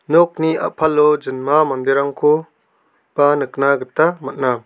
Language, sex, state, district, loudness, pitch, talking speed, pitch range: Garo, male, Meghalaya, South Garo Hills, -16 LUFS, 145 Hz, 105 wpm, 135-155 Hz